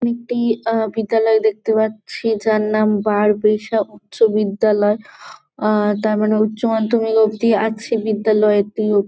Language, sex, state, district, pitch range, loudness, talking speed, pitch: Bengali, female, West Bengal, Jalpaiguri, 210-225 Hz, -17 LUFS, 130 wpm, 215 Hz